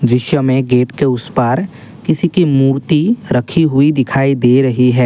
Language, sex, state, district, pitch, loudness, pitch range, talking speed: Hindi, male, Assam, Kamrup Metropolitan, 135 Hz, -13 LUFS, 125-150 Hz, 180 wpm